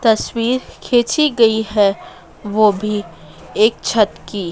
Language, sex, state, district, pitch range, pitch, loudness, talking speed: Hindi, female, Madhya Pradesh, Dhar, 205-230 Hz, 215 Hz, -16 LUFS, 120 wpm